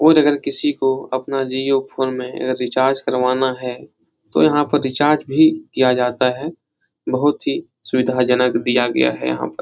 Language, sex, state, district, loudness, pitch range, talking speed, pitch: Hindi, male, Bihar, Jahanabad, -18 LUFS, 125-145 Hz, 160 wpm, 130 Hz